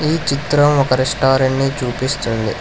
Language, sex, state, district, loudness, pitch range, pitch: Telugu, male, Telangana, Hyderabad, -16 LUFS, 130-145 Hz, 135 Hz